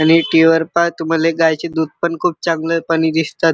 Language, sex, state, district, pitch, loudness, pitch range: Marathi, male, Maharashtra, Chandrapur, 165 Hz, -15 LUFS, 160-165 Hz